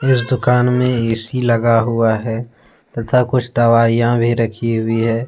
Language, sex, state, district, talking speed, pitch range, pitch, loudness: Hindi, male, Jharkhand, Deoghar, 160 wpm, 115-125 Hz, 115 Hz, -16 LUFS